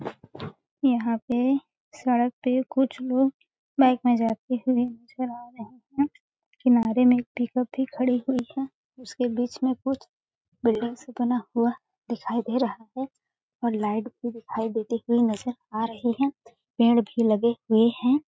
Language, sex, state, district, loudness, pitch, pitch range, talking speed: Hindi, female, Chhattisgarh, Balrampur, -25 LUFS, 245 Hz, 235-260 Hz, 165 wpm